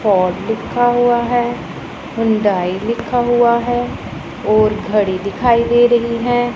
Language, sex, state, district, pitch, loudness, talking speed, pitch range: Hindi, female, Punjab, Pathankot, 235 Hz, -15 LUFS, 130 wpm, 210-240 Hz